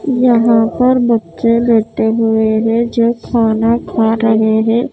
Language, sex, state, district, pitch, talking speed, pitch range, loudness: Hindi, female, Maharashtra, Mumbai Suburban, 230 Hz, 135 wpm, 225-235 Hz, -13 LUFS